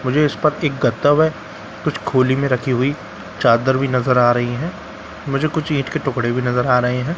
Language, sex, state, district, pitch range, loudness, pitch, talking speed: Hindi, male, Bihar, Katihar, 120-145 Hz, -18 LUFS, 130 Hz, 235 wpm